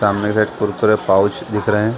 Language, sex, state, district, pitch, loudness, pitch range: Hindi, male, Chhattisgarh, Bastar, 105 Hz, -17 LUFS, 100-110 Hz